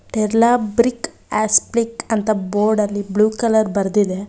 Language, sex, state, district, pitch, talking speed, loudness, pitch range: Kannada, female, Karnataka, Bangalore, 215 Hz, 125 wpm, -17 LUFS, 205-230 Hz